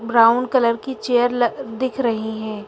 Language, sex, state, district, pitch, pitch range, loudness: Hindi, female, Madhya Pradesh, Bhopal, 240 Hz, 225-250 Hz, -19 LUFS